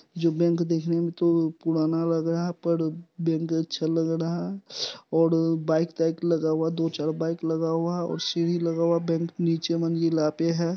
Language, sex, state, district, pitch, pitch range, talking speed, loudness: Hindi, male, Bihar, Supaul, 165 Hz, 165-170 Hz, 210 wpm, -26 LUFS